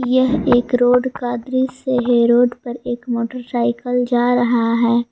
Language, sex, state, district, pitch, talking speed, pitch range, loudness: Hindi, female, Jharkhand, Garhwa, 245 Hz, 165 wpm, 240-250 Hz, -17 LUFS